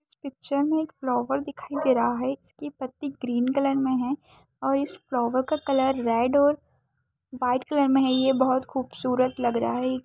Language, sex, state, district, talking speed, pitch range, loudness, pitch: Hindi, female, Chhattisgarh, Kabirdham, 195 wpm, 255-280 Hz, -25 LUFS, 265 Hz